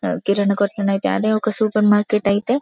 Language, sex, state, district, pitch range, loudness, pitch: Telugu, female, Telangana, Karimnagar, 200-215 Hz, -18 LUFS, 210 Hz